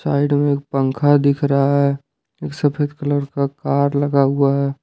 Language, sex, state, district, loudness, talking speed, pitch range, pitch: Hindi, male, Jharkhand, Ranchi, -18 LUFS, 185 wpm, 140-145 Hz, 140 Hz